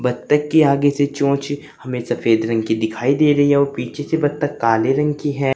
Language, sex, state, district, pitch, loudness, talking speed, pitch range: Hindi, male, Uttar Pradesh, Saharanpur, 140 Hz, -18 LUFS, 225 wpm, 125-145 Hz